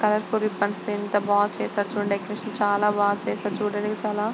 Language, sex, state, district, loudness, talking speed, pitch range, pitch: Telugu, female, Andhra Pradesh, Guntur, -25 LUFS, 165 wpm, 205-210 Hz, 205 Hz